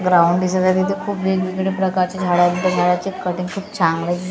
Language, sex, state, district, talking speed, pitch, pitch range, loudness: Marathi, female, Maharashtra, Gondia, 210 wpm, 185 Hz, 180-190 Hz, -18 LUFS